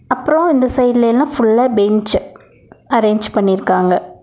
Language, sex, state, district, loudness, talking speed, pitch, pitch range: Tamil, female, Tamil Nadu, Nilgiris, -14 LUFS, 100 wpm, 230 Hz, 210-255 Hz